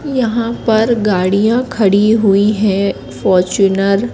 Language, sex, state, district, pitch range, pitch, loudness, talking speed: Hindi, female, Madhya Pradesh, Katni, 195-230 Hz, 205 Hz, -13 LUFS, 115 wpm